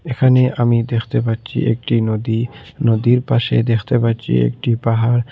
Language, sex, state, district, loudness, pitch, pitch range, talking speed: Bengali, male, Assam, Hailakandi, -17 LUFS, 115 Hz, 115-120 Hz, 135 wpm